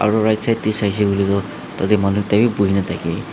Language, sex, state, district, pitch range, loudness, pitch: Nagamese, male, Nagaland, Dimapur, 100-110 Hz, -18 LUFS, 100 Hz